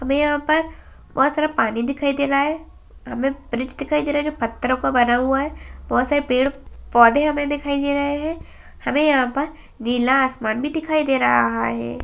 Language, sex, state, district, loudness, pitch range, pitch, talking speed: Hindi, female, Uttar Pradesh, Etah, -20 LUFS, 250-295 Hz, 275 Hz, 200 wpm